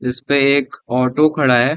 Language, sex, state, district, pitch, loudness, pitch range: Hindi, male, Bihar, Sitamarhi, 130 Hz, -16 LUFS, 125-140 Hz